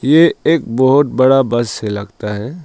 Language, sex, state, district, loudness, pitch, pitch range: Hindi, male, Arunachal Pradesh, Longding, -14 LUFS, 130 Hz, 110-145 Hz